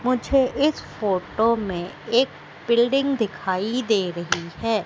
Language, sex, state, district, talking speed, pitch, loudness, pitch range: Hindi, female, Madhya Pradesh, Katni, 125 wpm, 225 Hz, -23 LUFS, 185-250 Hz